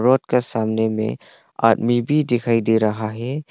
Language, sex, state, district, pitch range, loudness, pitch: Hindi, male, Arunachal Pradesh, Longding, 110-125 Hz, -20 LUFS, 115 Hz